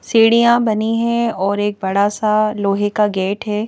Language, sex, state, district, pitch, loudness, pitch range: Hindi, female, Madhya Pradesh, Bhopal, 210 Hz, -16 LUFS, 205-225 Hz